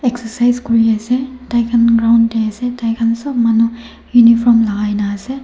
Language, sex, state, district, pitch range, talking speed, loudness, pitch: Nagamese, male, Nagaland, Dimapur, 225-245 Hz, 165 wpm, -14 LUFS, 230 Hz